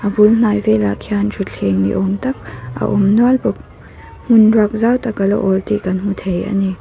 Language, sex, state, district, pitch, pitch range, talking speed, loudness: Mizo, female, Mizoram, Aizawl, 200 Hz, 180-215 Hz, 210 wpm, -15 LUFS